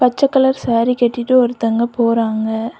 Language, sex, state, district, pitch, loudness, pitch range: Tamil, female, Tamil Nadu, Kanyakumari, 240 Hz, -16 LUFS, 230-250 Hz